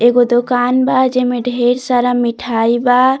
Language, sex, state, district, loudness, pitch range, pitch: Bhojpuri, female, Bihar, Muzaffarpur, -14 LUFS, 240-255 Hz, 245 Hz